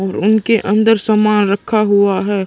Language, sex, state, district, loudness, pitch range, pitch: Hindi, male, Chhattisgarh, Sukma, -13 LUFS, 200-215 Hz, 210 Hz